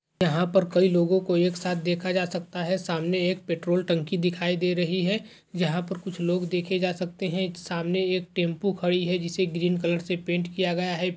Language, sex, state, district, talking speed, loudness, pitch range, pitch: Hindi, male, Uttar Pradesh, Jalaun, 215 wpm, -26 LUFS, 175-185 Hz, 180 Hz